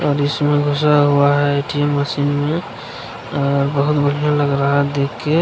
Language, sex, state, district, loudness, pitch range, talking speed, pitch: Hindi, male, Bihar, Kishanganj, -17 LUFS, 140-145 Hz, 190 wpm, 145 Hz